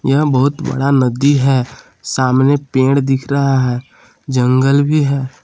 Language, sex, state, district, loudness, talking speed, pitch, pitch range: Hindi, male, Jharkhand, Palamu, -14 LUFS, 145 wpm, 135 Hz, 130-140 Hz